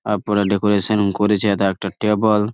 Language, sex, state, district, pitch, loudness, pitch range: Bengali, male, West Bengal, Jalpaiguri, 105 Hz, -18 LUFS, 100-105 Hz